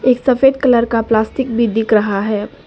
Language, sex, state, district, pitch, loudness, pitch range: Hindi, female, Arunachal Pradesh, Papum Pare, 230 Hz, -14 LUFS, 220-255 Hz